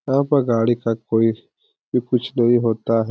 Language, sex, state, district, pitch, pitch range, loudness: Hindi, male, Bihar, Supaul, 120 Hz, 115-135 Hz, -19 LUFS